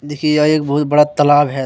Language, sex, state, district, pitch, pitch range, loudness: Hindi, male, Jharkhand, Deoghar, 145 Hz, 145-150 Hz, -14 LUFS